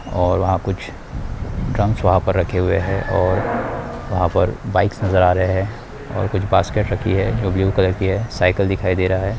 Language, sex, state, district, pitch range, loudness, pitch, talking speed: Hindi, male, Bihar, Muzaffarpur, 95-100 Hz, -19 LUFS, 95 Hz, 205 wpm